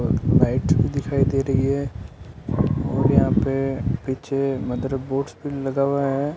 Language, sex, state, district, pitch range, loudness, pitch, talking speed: Hindi, male, Rajasthan, Bikaner, 130-140 Hz, -22 LUFS, 135 Hz, 140 wpm